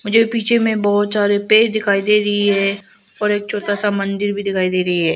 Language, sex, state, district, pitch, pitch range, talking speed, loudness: Hindi, female, Arunachal Pradesh, Lower Dibang Valley, 205 Hz, 200-215 Hz, 230 wpm, -16 LUFS